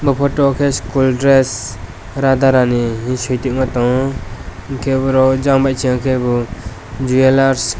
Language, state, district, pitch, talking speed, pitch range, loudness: Kokborok, Tripura, West Tripura, 130 Hz, 130 wpm, 120-135 Hz, -15 LUFS